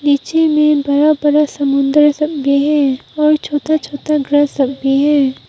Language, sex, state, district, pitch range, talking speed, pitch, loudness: Hindi, female, Arunachal Pradesh, Papum Pare, 280-300 Hz, 165 wpm, 290 Hz, -14 LUFS